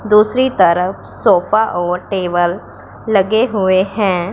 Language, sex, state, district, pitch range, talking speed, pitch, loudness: Hindi, female, Punjab, Pathankot, 180-215 Hz, 110 wpm, 195 Hz, -14 LUFS